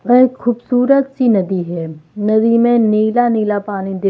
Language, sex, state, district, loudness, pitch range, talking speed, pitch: Hindi, female, Haryana, Jhajjar, -15 LUFS, 195-240 Hz, 190 wpm, 220 Hz